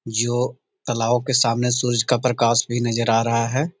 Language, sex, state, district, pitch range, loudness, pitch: Magahi, male, Bihar, Jahanabad, 115-125 Hz, -20 LUFS, 120 Hz